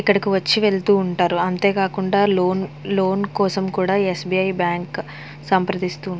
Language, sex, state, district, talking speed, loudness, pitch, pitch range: Telugu, female, Andhra Pradesh, Visakhapatnam, 165 wpm, -20 LUFS, 190 Hz, 180-195 Hz